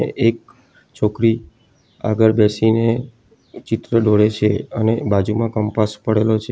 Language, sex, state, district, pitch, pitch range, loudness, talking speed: Gujarati, male, Gujarat, Valsad, 110 Hz, 105-115 Hz, -18 LUFS, 110 wpm